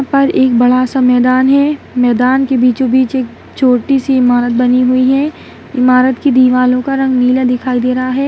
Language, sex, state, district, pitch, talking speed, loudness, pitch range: Kumaoni, female, Uttarakhand, Tehri Garhwal, 255 Hz, 195 wpm, -11 LUFS, 250-265 Hz